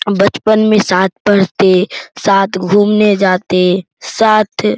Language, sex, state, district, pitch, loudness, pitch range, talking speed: Hindi, male, Bihar, Araria, 195 Hz, -12 LUFS, 185-210 Hz, 125 wpm